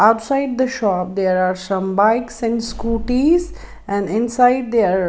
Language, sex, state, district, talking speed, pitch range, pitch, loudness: English, female, Maharashtra, Mumbai Suburban, 165 wpm, 195-250 Hz, 230 Hz, -18 LUFS